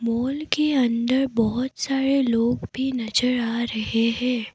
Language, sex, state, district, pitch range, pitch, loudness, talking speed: Hindi, female, Assam, Kamrup Metropolitan, 230-265 Hz, 245 Hz, -23 LUFS, 145 wpm